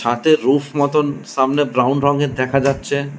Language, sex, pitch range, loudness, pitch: Bengali, male, 130-145 Hz, -17 LUFS, 140 Hz